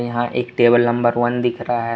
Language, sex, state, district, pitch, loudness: Hindi, male, Tripura, West Tripura, 120 Hz, -18 LUFS